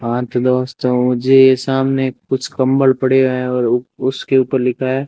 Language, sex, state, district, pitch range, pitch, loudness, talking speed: Hindi, male, Rajasthan, Bikaner, 125-135 Hz, 130 Hz, -15 LUFS, 165 wpm